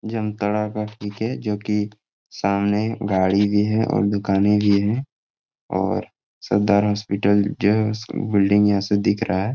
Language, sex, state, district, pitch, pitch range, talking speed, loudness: Hindi, male, Jharkhand, Jamtara, 105 Hz, 100-105 Hz, 150 wpm, -21 LUFS